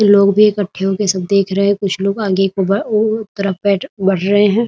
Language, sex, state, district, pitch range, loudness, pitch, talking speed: Hindi, female, Bihar, Muzaffarpur, 195-205 Hz, -15 LUFS, 200 Hz, 280 wpm